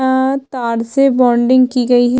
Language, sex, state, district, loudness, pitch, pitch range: Hindi, female, Chhattisgarh, Sukma, -13 LUFS, 255 Hz, 245-260 Hz